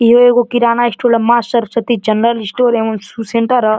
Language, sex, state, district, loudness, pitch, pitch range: Bhojpuri, male, Uttar Pradesh, Deoria, -13 LUFS, 235 Hz, 225-240 Hz